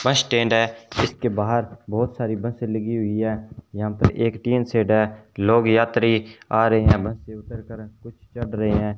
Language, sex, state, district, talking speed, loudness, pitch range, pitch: Hindi, male, Rajasthan, Bikaner, 200 wpm, -21 LUFS, 110-115 Hz, 115 Hz